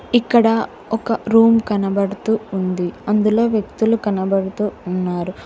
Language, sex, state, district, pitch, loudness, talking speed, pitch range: Telugu, female, Telangana, Hyderabad, 210 Hz, -18 LUFS, 100 wpm, 190-225 Hz